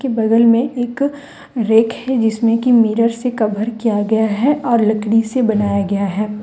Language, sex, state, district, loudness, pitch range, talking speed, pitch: Hindi, female, Jharkhand, Deoghar, -16 LUFS, 215-245 Hz, 195 wpm, 225 Hz